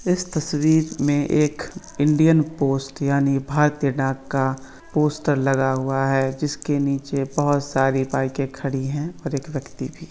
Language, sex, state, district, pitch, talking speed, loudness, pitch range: Hindi, male, Uttar Pradesh, Varanasi, 140 Hz, 155 wpm, -22 LUFS, 135-150 Hz